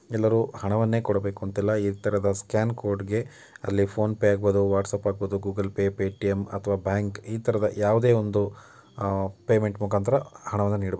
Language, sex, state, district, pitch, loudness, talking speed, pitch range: Kannada, male, Karnataka, Mysore, 100 Hz, -26 LUFS, 130 wpm, 100-110 Hz